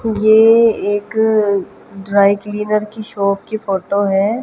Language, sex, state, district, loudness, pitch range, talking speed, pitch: Hindi, female, Haryana, Jhajjar, -15 LUFS, 200-220 Hz, 120 wpm, 210 Hz